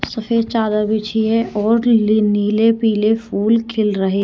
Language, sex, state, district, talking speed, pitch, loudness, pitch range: Hindi, female, Haryana, Rohtak, 155 wpm, 220 Hz, -16 LUFS, 210-230 Hz